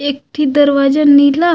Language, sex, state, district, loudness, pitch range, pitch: Chhattisgarhi, female, Chhattisgarh, Raigarh, -11 LUFS, 285-295 Hz, 285 Hz